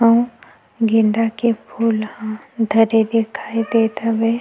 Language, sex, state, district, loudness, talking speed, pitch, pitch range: Chhattisgarhi, female, Chhattisgarh, Sukma, -18 LUFS, 120 wpm, 225 Hz, 220-230 Hz